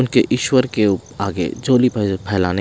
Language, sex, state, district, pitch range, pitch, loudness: Hindi, male, Himachal Pradesh, Shimla, 100-125 Hz, 110 Hz, -18 LUFS